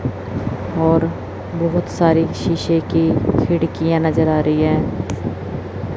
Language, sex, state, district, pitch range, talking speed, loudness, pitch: Hindi, female, Chandigarh, Chandigarh, 105-165 Hz, 100 wpm, -18 LUFS, 155 Hz